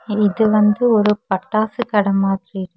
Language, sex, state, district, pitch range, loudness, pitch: Tamil, female, Tamil Nadu, Kanyakumari, 195-220 Hz, -17 LUFS, 210 Hz